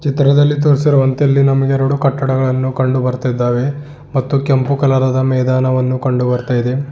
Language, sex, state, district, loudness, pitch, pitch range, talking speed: Kannada, male, Karnataka, Bidar, -14 LUFS, 135 Hz, 130-140 Hz, 140 wpm